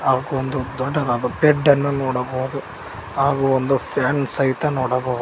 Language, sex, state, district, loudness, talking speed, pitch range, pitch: Kannada, male, Karnataka, Koppal, -20 LUFS, 115 wpm, 130-140 Hz, 135 Hz